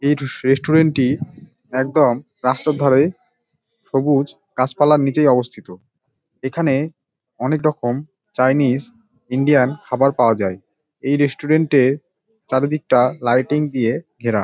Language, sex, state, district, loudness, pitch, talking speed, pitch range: Bengali, male, West Bengal, Dakshin Dinajpur, -18 LUFS, 135 Hz, 115 wpm, 125-150 Hz